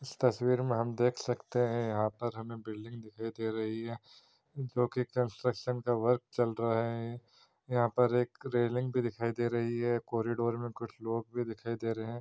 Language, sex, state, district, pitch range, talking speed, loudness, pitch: Hindi, male, Bihar, Saran, 115-125 Hz, 210 wpm, -33 LUFS, 120 Hz